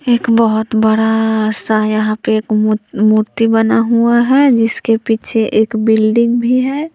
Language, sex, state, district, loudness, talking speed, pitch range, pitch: Hindi, female, Bihar, West Champaran, -13 LUFS, 155 wpm, 220-235 Hz, 225 Hz